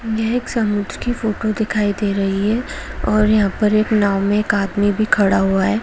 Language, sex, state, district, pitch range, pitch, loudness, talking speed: Hindi, female, Jharkhand, Jamtara, 200-220 Hz, 210 Hz, -18 LUFS, 215 wpm